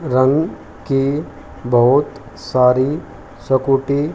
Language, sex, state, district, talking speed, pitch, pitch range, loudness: Hindi, male, Haryana, Jhajjar, 85 wpm, 130 Hz, 120-140 Hz, -17 LUFS